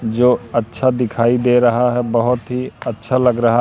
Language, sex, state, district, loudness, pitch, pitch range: Hindi, male, Madhya Pradesh, Katni, -16 LUFS, 120 Hz, 115-125 Hz